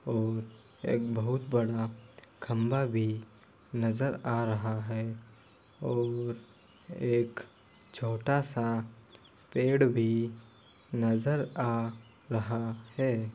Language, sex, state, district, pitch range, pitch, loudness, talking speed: Hindi, male, Bihar, Saharsa, 110-120 Hz, 115 Hz, -32 LUFS, 90 wpm